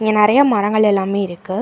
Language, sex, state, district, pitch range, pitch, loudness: Tamil, female, Karnataka, Bangalore, 195-215 Hz, 210 Hz, -15 LUFS